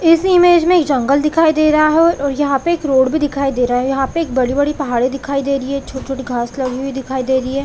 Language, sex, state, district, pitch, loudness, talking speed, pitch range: Hindi, female, Chhattisgarh, Bilaspur, 275 Hz, -15 LUFS, 315 wpm, 265-305 Hz